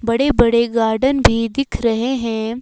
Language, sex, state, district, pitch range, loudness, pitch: Hindi, female, Himachal Pradesh, Shimla, 230-255 Hz, -17 LUFS, 235 Hz